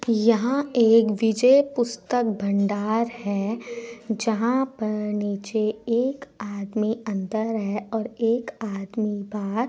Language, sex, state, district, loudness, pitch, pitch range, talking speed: Hindi, female, Bihar, Supaul, -24 LUFS, 225 Hz, 210-235 Hz, 105 wpm